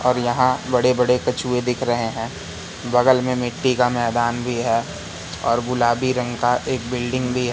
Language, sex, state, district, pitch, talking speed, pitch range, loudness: Hindi, male, Madhya Pradesh, Katni, 125 Hz, 185 wpm, 120-125 Hz, -20 LUFS